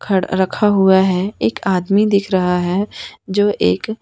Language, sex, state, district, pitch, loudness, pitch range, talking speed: Hindi, female, Chhattisgarh, Raipur, 195 Hz, -16 LUFS, 185-205 Hz, 165 wpm